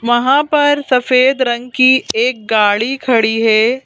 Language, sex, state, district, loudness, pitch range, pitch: Hindi, female, Madhya Pradesh, Bhopal, -13 LUFS, 230-270 Hz, 255 Hz